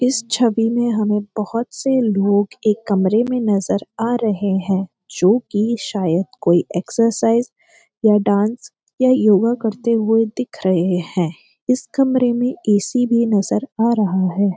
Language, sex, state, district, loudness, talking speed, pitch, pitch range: Hindi, female, Uttarakhand, Uttarkashi, -18 LUFS, 150 wpm, 220 Hz, 200-240 Hz